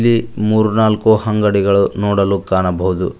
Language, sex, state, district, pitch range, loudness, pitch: Kannada, male, Karnataka, Koppal, 100-110 Hz, -15 LUFS, 105 Hz